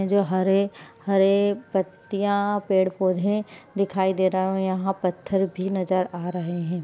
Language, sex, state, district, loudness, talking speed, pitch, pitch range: Hindi, female, Maharashtra, Nagpur, -24 LUFS, 160 wpm, 190 Hz, 185-200 Hz